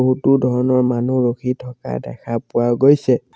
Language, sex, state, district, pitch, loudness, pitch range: Assamese, male, Assam, Sonitpur, 125 Hz, -18 LUFS, 120-130 Hz